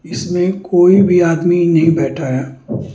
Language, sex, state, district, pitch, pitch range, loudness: Hindi, male, Delhi, New Delhi, 175 Hz, 165-180 Hz, -13 LUFS